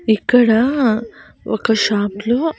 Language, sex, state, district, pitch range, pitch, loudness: Telugu, female, Andhra Pradesh, Annamaya, 215-245 Hz, 225 Hz, -16 LUFS